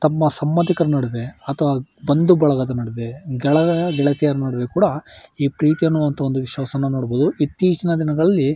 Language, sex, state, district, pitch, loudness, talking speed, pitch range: Kannada, male, Karnataka, Shimoga, 145 Hz, -19 LUFS, 120 wpm, 135-160 Hz